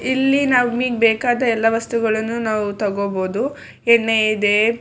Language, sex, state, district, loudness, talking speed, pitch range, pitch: Kannada, female, Karnataka, Shimoga, -18 LUFS, 135 wpm, 215-245 Hz, 230 Hz